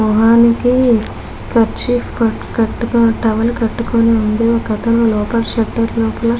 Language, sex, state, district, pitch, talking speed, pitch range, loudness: Telugu, female, Andhra Pradesh, Guntur, 230 Hz, 115 wpm, 225-235 Hz, -14 LUFS